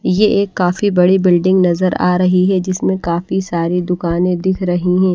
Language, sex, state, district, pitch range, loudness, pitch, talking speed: Hindi, female, Odisha, Malkangiri, 180-190 Hz, -15 LUFS, 180 Hz, 185 wpm